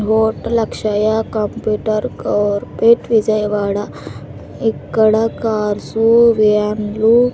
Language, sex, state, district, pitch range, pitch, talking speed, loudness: Telugu, female, Andhra Pradesh, Sri Satya Sai, 210-225 Hz, 215 Hz, 80 wpm, -16 LUFS